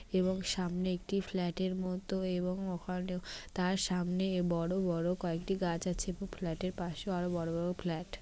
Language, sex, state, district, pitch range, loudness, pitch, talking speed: Bengali, female, West Bengal, Malda, 175-185 Hz, -35 LUFS, 180 Hz, 175 wpm